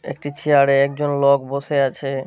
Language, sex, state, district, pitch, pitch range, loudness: Bengali, male, West Bengal, Malda, 140 Hz, 135-145 Hz, -18 LUFS